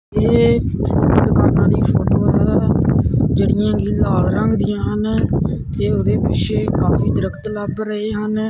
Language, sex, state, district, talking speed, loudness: Punjabi, male, Punjab, Kapurthala, 135 wpm, -17 LUFS